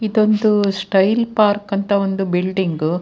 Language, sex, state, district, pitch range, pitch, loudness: Kannada, female, Karnataka, Dakshina Kannada, 190-215 Hz, 200 Hz, -17 LUFS